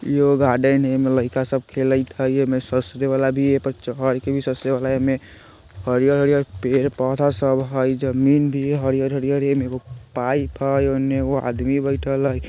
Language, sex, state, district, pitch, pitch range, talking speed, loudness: Bajjika, male, Bihar, Vaishali, 135 Hz, 130-140 Hz, 180 wpm, -20 LUFS